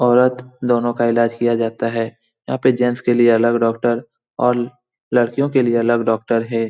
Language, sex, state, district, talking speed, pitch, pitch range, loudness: Hindi, male, Bihar, Lakhisarai, 190 wpm, 120 Hz, 115-125 Hz, -18 LUFS